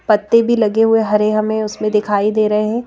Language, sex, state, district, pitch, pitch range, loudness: Hindi, female, Madhya Pradesh, Bhopal, 215 Hz, 210-225 Hz, -15 LUFS